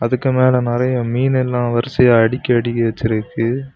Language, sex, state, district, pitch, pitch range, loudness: Tamil, male, Tamil Nadu, Kanyakumari, 125 Hz, 120-130 Hz, -16 LUFS